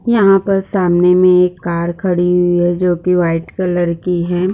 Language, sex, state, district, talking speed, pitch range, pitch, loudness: Hindi, female, Uttarakhand, Uttarkashi, 200 wpm, 175-185 Hz, 180 Hz, -14 LUFS